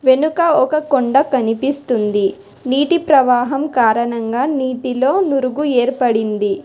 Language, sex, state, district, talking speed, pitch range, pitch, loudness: Telugu, female, Telangana, Hyderabad, 90 wpm, 235-280 Hz, 260 Hz, -16 LUFS